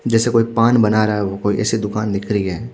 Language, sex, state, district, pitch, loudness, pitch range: Hindi, male, Odisha, Khordha, 105 Hz, -17 LUFS, 105-115 Hz